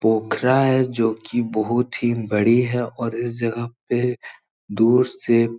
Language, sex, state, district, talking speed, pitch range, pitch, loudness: Hindi, male, Bihar, Supaul, 160 wpm, 115-120 Hz, 120 Hz, -21 LUFS